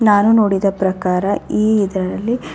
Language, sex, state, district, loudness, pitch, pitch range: Kannada, female, Karnataka, Raichur, -16 LUFS, 200 Hz, 190-215 Hz